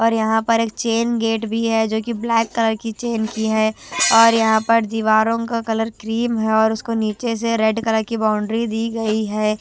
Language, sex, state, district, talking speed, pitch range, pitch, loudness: Hindi, female, Chhattisgarh, Raipur, 210 wpm, 220-230 Hz, 225 Hz, -19 LUFS